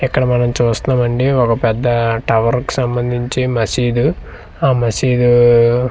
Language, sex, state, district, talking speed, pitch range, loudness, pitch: Telugu, male, Andhra Pradesh, Manyam, 110 wpm, 120-125 Hz, -14 LUFS, 120 Hz